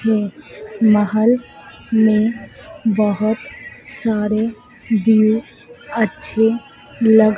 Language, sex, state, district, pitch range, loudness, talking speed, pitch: Hindi, female, Madhya Pradesh, Dhar, 215-235 Hz, -17 LUFS, 75 wpm, 220 Hz